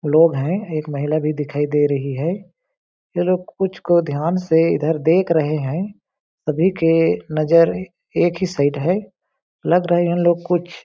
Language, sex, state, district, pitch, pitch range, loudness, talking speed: Hindi, male, Chhattisgarh, Balrampur, 165 Hz, 150-175 Hz, -19 LUFS, 175 wpm